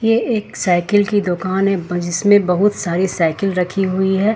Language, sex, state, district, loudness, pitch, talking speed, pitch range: Hindi, female, Jharkhand, Ranchi, -17 LUFS, 190 Hz, 180 wpm, 180-205 Hz